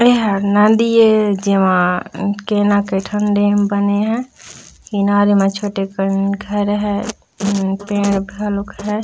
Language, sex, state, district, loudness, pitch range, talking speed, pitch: Chhattisgarhi, female, Chhattisgarh, Raigarh, -16 LUFS, 200-210 Hz, 145 wpm, 205 Hz